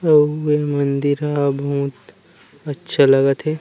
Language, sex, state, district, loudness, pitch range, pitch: Chhattisgarhi, male, Chhattisgarh, Rajnandgaon, -18 LUFS, 140-150 Hz, 145 Hz